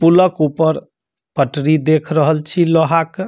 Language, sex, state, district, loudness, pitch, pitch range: Maithili, male, Bihar, Samastipur, -15 LUFS, 160 Hz, 155-165 Hz